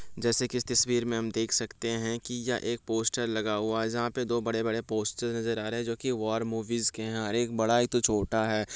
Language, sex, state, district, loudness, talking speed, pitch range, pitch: Hindi, male, Bihar, Madhepura, -29 LUFS, 260 wpm, 110-120 Hz, 115 Hz